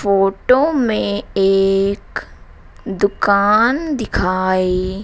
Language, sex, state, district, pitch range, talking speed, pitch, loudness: Hindi, female, Madhya Pradesh, Dhar, 190-220 Hz, 60 wpm, 195 Hz, -16 LUFS